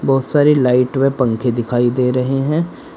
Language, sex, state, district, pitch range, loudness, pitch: Hindi, male, Uttar Pradesh, Saharanpur, 125-135 Hz, -16 LUFS, 130 Hz